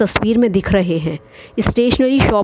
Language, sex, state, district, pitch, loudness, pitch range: Hindi, female, Maharashtra, Chandrapur, 205 Hz, -15 LUFS, 165-240 Hz